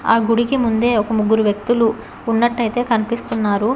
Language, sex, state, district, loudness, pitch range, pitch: Telugu, female, Telangana, Hyderabad, -17 LUFS, 220-235 Hz, 230 Hz